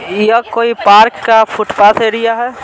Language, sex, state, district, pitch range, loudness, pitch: Hindi, male, Bihar, Patna, 215-230 Hz, -10 LUFS, 225 Hz